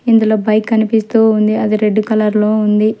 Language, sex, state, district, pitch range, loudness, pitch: Telugu, male, Telangana, Hyderabad, 215-220 Hz, -13 LUFS, 215 Hz